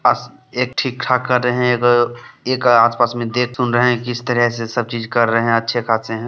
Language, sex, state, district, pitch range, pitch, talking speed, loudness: Hindi, male, Bihar, Samastipur, 115-125 Hz, 120 Hz, 260 wpm, -17 LUFS